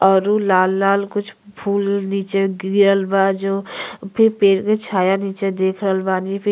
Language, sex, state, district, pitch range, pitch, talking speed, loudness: Bhojpuri, female, Uttar Pradesh, Ghazipur, 190-200 Hz, 195 Hz, 185 wpm, -18 LUFS